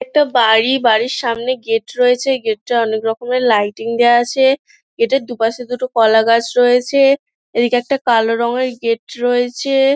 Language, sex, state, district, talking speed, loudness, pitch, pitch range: Bengali, female, West Bengal, Dakshin Dinajpur, 155 wpm, -15 LUFS, 245 Hz, 230-260 Hz